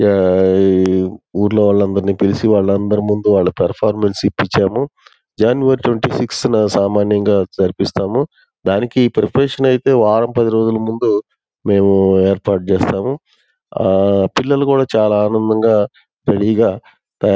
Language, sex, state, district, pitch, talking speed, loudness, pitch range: Telugu, male, Andhra Pradesh, Guntur, 105 Hz, 115 wpm, -15 LUFS, 100-115 Hz